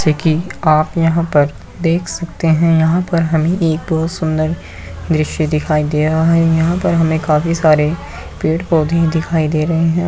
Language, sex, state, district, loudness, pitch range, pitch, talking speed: Hindi, male, Uttar Pradesh, Muzaffarnagar, -15 LUFS, 155-165 Hz, 160 Hz, 175 wpm